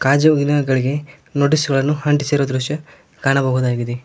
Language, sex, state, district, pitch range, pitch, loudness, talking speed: Kannada, male, Karnataka, Koppal, 130-145 Hz, 140 Hz, -18 LUFS, 90 wpm